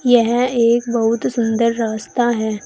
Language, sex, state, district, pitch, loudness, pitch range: Hindi, female, Uttar Pradesh, Saharanpur, 235 Hz, -17 LUFS, 225-240 Hz